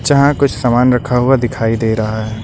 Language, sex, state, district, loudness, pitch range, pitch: Hindi, male, Uttar Pradesh, Lucknow, -14 LUFS, 110-135 Hz, 125 Hz